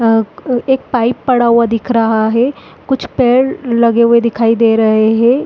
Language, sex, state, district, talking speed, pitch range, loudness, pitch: Hindi, female, Uttarakhand, Uttarkashi, 185 wpm, 225-250 Hz, -12 LUFS, 235 Hz